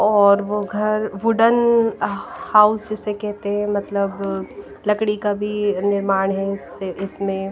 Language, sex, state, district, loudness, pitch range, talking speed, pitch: Hindi, female, Himachal Pradesh, Shimla, -20 LUFS, 195-210 Hz, 120 wpm, 205 Hz